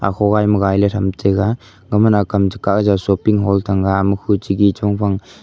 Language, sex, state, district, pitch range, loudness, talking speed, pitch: Wancho, male, Arunachal Pradesh, Longding, 95-105 Hz, -16 LUFS, 255 wpm, 100 Hz